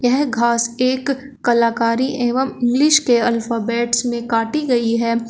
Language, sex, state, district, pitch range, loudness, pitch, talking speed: Hindi, female, Uttar Pradesh, Shamli, 235-260 Hz, -17 LUFS, 240 Hz, 135 wpm